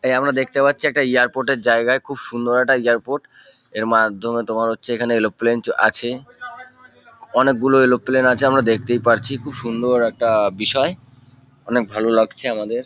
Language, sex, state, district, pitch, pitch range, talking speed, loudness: Bengali, male, West Bengal, North 24 Parganas, 125 Hz, 115-135 Hz, 155 wpm, -18 LUFS